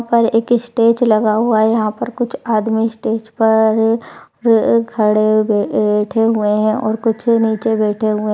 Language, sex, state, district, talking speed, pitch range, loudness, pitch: Hindi, female, Maharashtra, Pune, 185 wpm, 215-230 Hz, -15 LUFS, 225 Hz